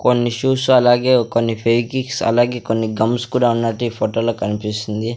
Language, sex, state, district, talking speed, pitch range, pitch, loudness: Telugu, male, Andhra Pradesh, Sri Satya Sai, 160 wpm, 115-125 Hz, 115 Hz, -17 LUFS